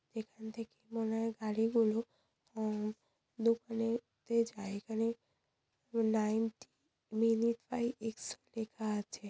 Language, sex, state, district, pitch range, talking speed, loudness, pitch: Bengali, female, West Bengal, Purulia, 220-230 Hz, 95 wpm, -37 LUFS, 225 Hz